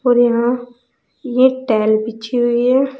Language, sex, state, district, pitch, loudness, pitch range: Hindi, female, Uttar Pradesh, Saharanpur, 245 Hz, -16 LUFS, 235-255 Hz